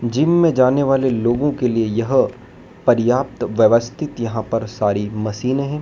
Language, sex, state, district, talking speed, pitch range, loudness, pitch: Hindi, male, Madhya Pradesh, Dhar, 155 wpm, 115-140 Hz, -18 LUFS, 125 Hz